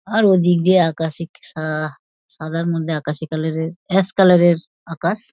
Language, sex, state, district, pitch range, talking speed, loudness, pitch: Bengali, female, West Bengal, Dakshin Dinajpur, 160-185 Hz, 180 wpm, -18 LUFS, 165 Hz